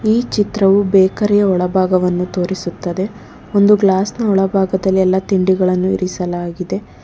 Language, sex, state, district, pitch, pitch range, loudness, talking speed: Kannada, female, Karnataka, Bangalore, 190 Hz, 185-200 Hz, -15 LUFS, 100 wpm